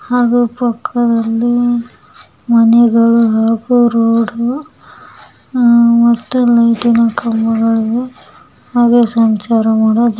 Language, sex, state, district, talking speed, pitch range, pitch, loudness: Kannada, female, Karnataka, Bellary, 65 wpm, 230-240 Hz, 235 Hz, -12 LUFS